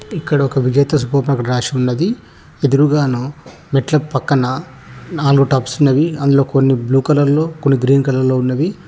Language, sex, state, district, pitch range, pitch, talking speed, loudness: Telugu, male, Telangana, Hyderabad, 130-150 Hz, 140 Hz, 150 wpm, -15 LUFS